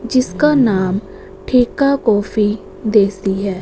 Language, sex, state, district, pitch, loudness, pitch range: Hindi, female, Punjab, Fazilka, 215 Hz, -16 LUFS, 195-255 Hz